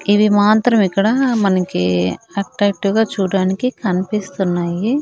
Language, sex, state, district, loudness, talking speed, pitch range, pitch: Telugu, female, Andhra Pradesh, Annamaya, -16 LUFS, 95 wpm, 185-215 Hz, 200 Hz